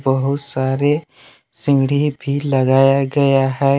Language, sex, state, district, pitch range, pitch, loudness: Hindi, male, Jharkhand, Palamu, 135-140 Hz, 140 Hz, -17 LUFS